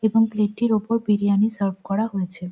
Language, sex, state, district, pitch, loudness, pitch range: Bengali, female, West Bengal, Jhargram, 210 Hz, -22 LUFS, 195-225 Hz